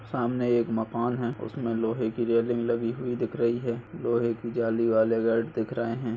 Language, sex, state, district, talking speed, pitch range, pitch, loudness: Hindi, male, Chhattisgarh, Kabirdham, 205 wpm, 115-120 Hz, 115 Hz, -27 LUFS